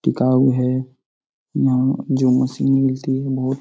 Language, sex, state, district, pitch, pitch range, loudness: Hindi, male, Bihar, Lakhisarai, 130 Hz, 130-135 Hz, -18 LUFS